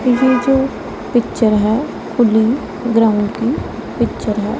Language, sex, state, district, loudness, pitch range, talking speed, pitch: Hindi, female, Punjab, Pathankot, -16 LUFS, 220-250 Hz, 115 wpm, 235 Hz